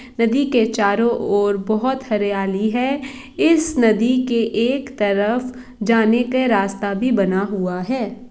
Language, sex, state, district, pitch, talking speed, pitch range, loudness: Hindi, female, Bihar, East Champaran, 230 Hz, 135 wpm, 205-255 Hz, -19 LUFS